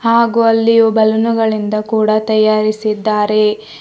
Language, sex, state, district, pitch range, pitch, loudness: Kannada, female, Karnataka, Bidar, 215-225 Hz, 220 Hz, -13 LUFS